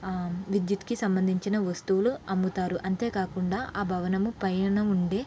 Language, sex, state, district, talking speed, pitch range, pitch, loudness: Telugu, female, Andhra Pradesh, Srikakulam, 125 wpm, 185-205 Hz, 190 Hz, -28 LUFS